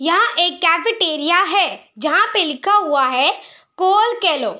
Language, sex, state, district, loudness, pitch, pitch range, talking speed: Hindi, female, Bihar, Araria, -16 LUFS, 345 Hz, 310-400 Hz, 155 wpm